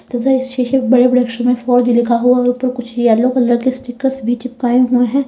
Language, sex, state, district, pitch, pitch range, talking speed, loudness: Hindi, female, Uttar Pradesh, Lalitpur, 250 Hz, 245-255 Hz, 250 wpm, -14 LUFS